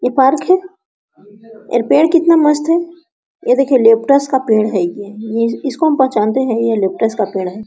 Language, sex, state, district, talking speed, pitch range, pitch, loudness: Hindi, female, Bihar, Araria, 195 wpm, 220-300 Hz, 245 Hz, -14 LUFS